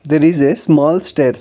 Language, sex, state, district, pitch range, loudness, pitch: English, male, Karnataka, Bangalore, 145-170 Hz, -13 LUFS, 155 Hz